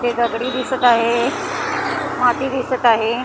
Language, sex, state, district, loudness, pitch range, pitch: Marathi, female, Maharashtra, Mumbai Suburban, -18 LUFS, 235-255 Hz, 245 Hz